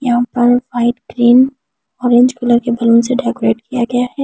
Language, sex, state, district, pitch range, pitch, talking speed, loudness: Hindi, female, Delhi, New Delhi, 240-250 Hz, 240 Hz, 195 wpm, -13 LUFS